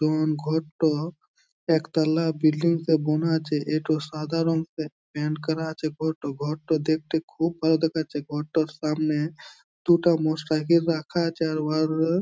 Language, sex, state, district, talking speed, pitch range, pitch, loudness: Bengali, male, West Bengal, Jhargram, 140 wpm, 155-165 Hz, 160 Hz, -25 LUFS